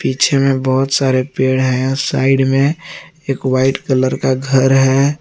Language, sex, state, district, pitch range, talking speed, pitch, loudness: Hindi, male, Jharkhand, Garhwa, 130-135 Hz, 160 wpm, 135 Hz, -14 LUFS